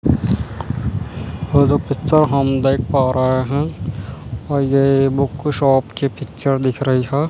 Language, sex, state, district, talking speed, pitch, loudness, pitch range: Hindi, male, Chandigarh, Chandigarh, 140 wpm, 135 Hz, -18 LUFS, 135-140 Hz